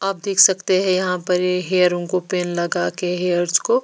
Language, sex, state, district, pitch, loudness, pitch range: Hindi, female, Chhattisgarh, Raipur, 180 Hz, -18 LUFS, 180-190 Hz